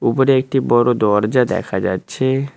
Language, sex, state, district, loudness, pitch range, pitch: Bengali, male, West Bengal, Cooch Behar, -16 LUFS, 105-135 Hz, 120 Hz